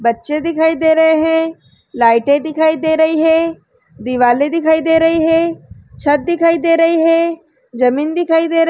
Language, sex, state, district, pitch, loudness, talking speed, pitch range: Hindi, female, Uttar Pradesh, Varanasi, 320 Hz, -13 LUFS, 165 wpm, 295-330 Hz